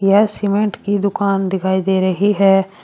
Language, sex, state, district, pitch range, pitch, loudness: Hindi, female, Uttar Pradesh, Shamli, 190-205 Hz, 195 Hz, -16 LUFS